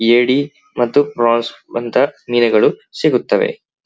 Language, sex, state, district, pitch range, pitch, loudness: Kannada, male, Karnataka, Belgaum, 120-145 Hz, 120 Hz, -16 LUFS